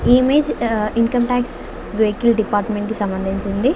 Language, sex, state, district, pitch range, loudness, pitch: Telugu, female, Andhra Pradesh, Guntur, 210-245 Hz, -18 LUFS, 220 Hz